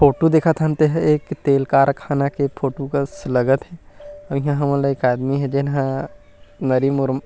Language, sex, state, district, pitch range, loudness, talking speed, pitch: Chhattisgarhi, male, Chhattisgarh, Rajnandgaon, 135-150 Hz, -19 LUFS, 180 wpm, 140 Hz